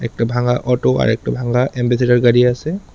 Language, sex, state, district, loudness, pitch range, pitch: Bengali, male, Tripura, West Tripura, -16 LUFS, 120-125 Hz, 125 Hz